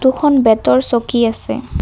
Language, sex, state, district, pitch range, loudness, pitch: Assamese, female, Assam, Kamrup Metropolitan, 230-265 Hz, -14 LUFS, 245 Hz